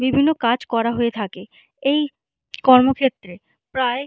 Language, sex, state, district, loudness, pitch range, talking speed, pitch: Bengali, female, West Bengal, Malda, -19 LUFS, 230-270 Hz, 120 wpm, 250 Hz